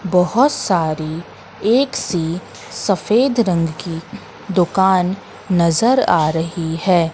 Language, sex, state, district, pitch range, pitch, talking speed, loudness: Hindi, female, Madhya Pradesh, Katni, 165-210 Hz, 180 Hz, 100 wpm, -17 LUFS